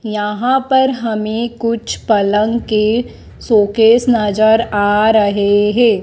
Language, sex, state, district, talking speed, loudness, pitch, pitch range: Hindi, female, Madhya Pradesh, Dhar, 110 wpm, -14 LUFS, 220 Hz, 210-235 Hz